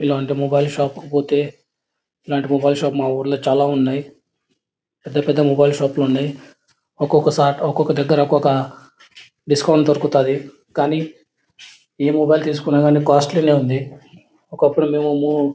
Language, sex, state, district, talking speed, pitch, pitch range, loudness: Telugu, male, Andhra Pradesh, Anantapur, 110 wpm, 145 Hz, 140-150 Hz, -17 LUFS